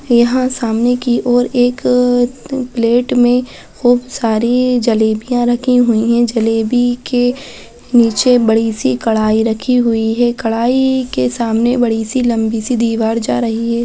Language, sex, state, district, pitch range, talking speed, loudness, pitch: Hindi, female, Bihar, Jahanabad, 225-245 Hz, 130 wpm, -14 LUFS, 240 Hz